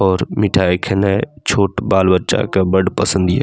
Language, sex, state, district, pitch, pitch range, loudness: Maithili, male, Bihar, Saharsa, 95 Hz, 95-100 Hz, -16 LUFS